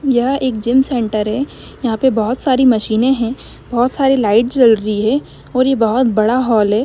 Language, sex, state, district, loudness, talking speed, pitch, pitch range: Hindi, female, Bihar, Jamui, -15 LUFS, 200 wpm, 245 Hz, 220-260 Hz